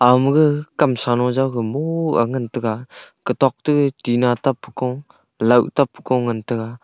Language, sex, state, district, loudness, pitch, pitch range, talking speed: Wancho, male, Arunachal Pradesh, Longding, -19 LUFS, 125 Hz, 120-140 Hz, 200 wpm